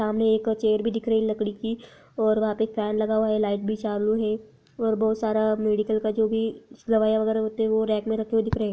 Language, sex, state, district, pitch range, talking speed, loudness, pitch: Hindi, female, Bihar, Araria, 215-220 Hz, 270 wpm, -25 LUFS, 220 Hz